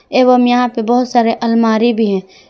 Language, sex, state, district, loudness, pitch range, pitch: Hindi, female, Jharkhand, Palamu, -13 LUFS, 230-245 Hz, 235 Hz